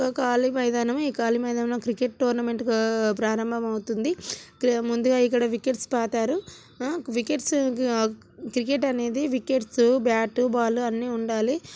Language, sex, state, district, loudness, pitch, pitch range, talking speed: Telugu, female, Telangana, Nalgonda, -25 LUFS, 240 Hz, 230-255 Hz, 115 wpm